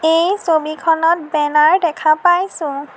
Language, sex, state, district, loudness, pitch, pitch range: Assamese, female, Assam, Sonitpur, -15 LUFS, 320 Hz, 305-340 Hz